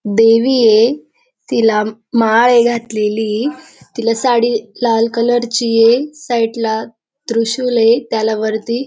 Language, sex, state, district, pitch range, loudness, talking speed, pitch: Marathi, female, Maharashtra, Dhule, 225-240 Hz, -14 LUFS, 100 wpm, 230 Hz